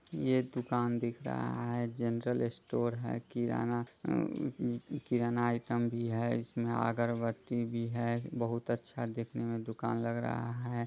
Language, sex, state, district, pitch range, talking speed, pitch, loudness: Hindi, male, Bihar, Muzaffarpur, 115-120 Hz, 140 wpm, 120 Hz, -35 LUFS